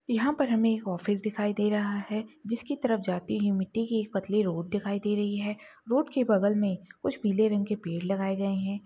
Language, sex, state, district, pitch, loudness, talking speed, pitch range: Hindi, female, Maharashtra, Solapur, 210 Hz, -29 LUFS, 235 wpm, 195-225 Hz